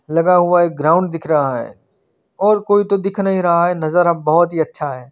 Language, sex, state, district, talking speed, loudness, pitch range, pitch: Hindi, male, Chandigarh, Chandigarh, 225 wpm, -16 LUFS, 160-185 Hz, 175 Hz